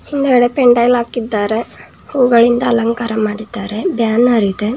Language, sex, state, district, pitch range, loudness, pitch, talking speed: Kannada, female, Karnataka, Bangalore, 220-245 Hz, -14 LUFS, 235 Hz, 100 wpm